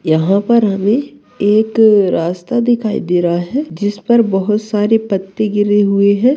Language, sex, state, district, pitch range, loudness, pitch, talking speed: Hindi, male, Bihar, Bhagalpur, 195-225 Hz, -14 LUFS, 205 Hz, 160 wpm